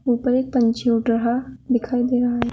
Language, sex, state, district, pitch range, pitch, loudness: Hindi, female, Uttar Pradesh, Shamli, 235-250 Hz, 245 Hz, -20 LUFS